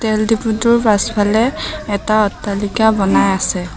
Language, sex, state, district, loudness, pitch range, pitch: Assamese, female, Assam, Sonitpur, -15 LUFS, 200-220 Hz, 215 Hz